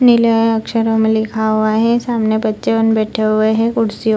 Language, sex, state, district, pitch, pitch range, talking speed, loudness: Hindi, female, Bihar, Purnia, 220 Hz, 220-230 Hz, 200 wpm, -15 LUFS